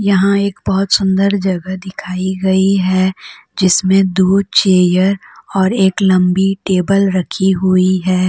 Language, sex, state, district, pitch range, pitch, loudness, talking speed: Hindi, female, Jharkhand, Deoghar, 185-195 Hz, 190 Hz, -13 LUFS, 130 wpm